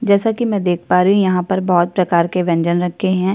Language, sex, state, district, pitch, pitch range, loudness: Hindi, female, Chhattisgarh, Kabirdham, 185 Hz, 175-195 Hz, -16 LUFS